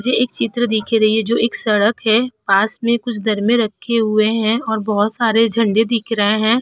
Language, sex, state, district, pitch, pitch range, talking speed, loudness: Hindi, female, Uttar Pradesh, Hamirpur, 225 Hz, 215-235 Hz, 220 wpm, -16 LUFS